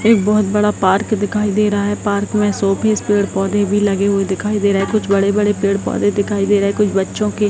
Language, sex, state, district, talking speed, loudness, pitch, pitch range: Hindi, female, Bihar, Jahanabad, 250 wpm, -16 LUFS, 205 Hz, 200-210 Hz